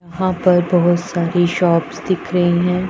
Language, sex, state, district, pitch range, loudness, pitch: Hindi, female, Punjab, Pathankot, 175-180 Hz, -16 LUFS, 175 Hz